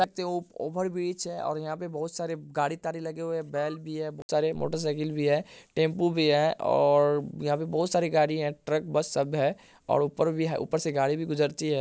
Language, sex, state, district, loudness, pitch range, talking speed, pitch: Hindi, male, Bihar, Araria, -28 LUFS, 150-165 Hz, 250 wpm, 155 Hz